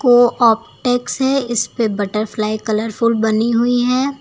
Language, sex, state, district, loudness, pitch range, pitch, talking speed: Hindi, female, Uttar Pradesh, Lucknow, -16 LUFS, 220-245 Hz, 230 Hz, 140 wpm